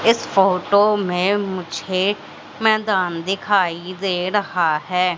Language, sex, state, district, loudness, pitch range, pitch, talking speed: Hindi, female, Madhya Pradesh, Katni, -19 LUFS, 180-205 Hz, 190 Hz, 105 wpm